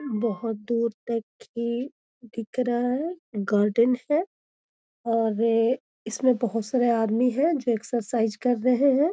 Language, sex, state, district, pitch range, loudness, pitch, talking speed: Magahi, female, Bihar, Gaya, 230-255 Hz, -25 LUFS, 235 Hz, 130 wpm